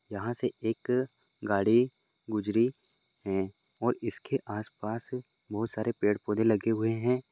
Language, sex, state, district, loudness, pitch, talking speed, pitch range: Hindi, male, Goa, North and South Goa, -31 LUFS, 115 Hz, 130 wpm, 105-125 Hz